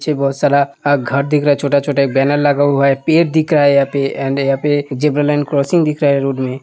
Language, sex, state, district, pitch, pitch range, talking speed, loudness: Hindi, male, Uttar Pradesh, Hamirpur, 140 Hz, 140-145 Hz, 270 wpm, -14 LUFS